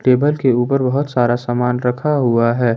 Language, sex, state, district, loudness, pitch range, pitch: Hindi, male, Jharkhand, Ranchi, -16 LUFS, 120-135 Hz, 125 Hz